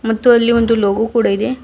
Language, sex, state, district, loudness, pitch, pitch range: Kannada, female, Karnataka, Bidar, -14 LUFS, 230 Hz, 220-235 Hz